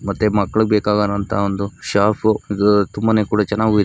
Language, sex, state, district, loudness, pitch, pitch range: Kannada, male, Karnataka, Mysore, -17 LUFS, 105 Hz, 100-105 Hz